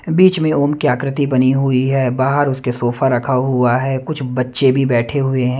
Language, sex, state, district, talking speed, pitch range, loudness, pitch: Hindi, male, Maharashtra, Mumbai Suburban, 215 wpm, 125-140 Hz, -16 LUFS, 130 Hz